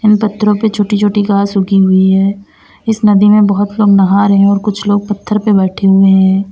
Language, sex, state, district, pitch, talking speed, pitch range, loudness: Hindi, female, Uttar Pradesh, Lalitpur, 200 Hz, 230 wpm, 195-210 Hz, -10 LUFS